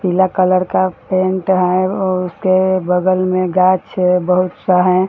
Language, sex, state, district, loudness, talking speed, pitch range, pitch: Hindi, female, Bihar, Jahanabad, -15 LUFS, 155 wpm, 180-185 Hz, 185 Hz